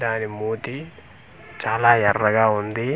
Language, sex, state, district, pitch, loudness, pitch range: Telugu, male, Andhra Pradesh, Manyam, 110 Hz, -20 LUFS, 105-120 Hz